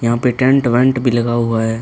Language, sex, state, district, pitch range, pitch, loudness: Hindi, male, Uttar Pradesh, Budaun, 115-125 Hz, 120 Hz, -15 LUFS